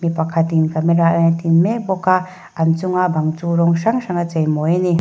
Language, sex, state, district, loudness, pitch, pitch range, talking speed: Mizo, female, Mizoram, Aizawl, -17 LUFS, 170 Hz, 160-180 Hz, 240 wpm